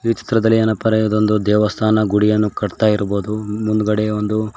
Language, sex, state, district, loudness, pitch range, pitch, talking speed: Kannada, male, Karnataka, Koppal, -17 LUFS, 105-110 Hz, 105 Hz, 120 wpm